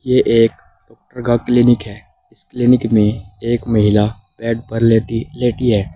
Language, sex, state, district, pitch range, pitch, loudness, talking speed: Hindi, male, Uttar Pradesh, Saharanpur, 105-120 Hz, 115 Hz, -15 LUFS, 150 wpm